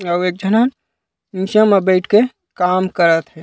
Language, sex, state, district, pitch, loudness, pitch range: Chhattisgarhi, male, Chhattisgarh, Raigarh, 185 Hz, -15 LUFS, 180-210 Hz